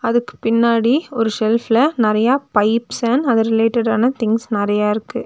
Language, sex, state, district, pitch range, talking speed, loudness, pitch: Tamil, female, Tamil Nadu, Nilgiris, 220-240 Hz, 135 wpm, -17 LUFS, 230 Hz